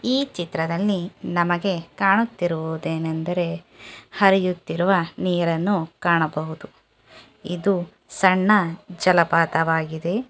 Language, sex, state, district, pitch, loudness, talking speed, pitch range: Kannada, female, Karnataka, Chamarajanagar, 175 Hz, -22 LUFS, 60 wpm, 165-195 Hz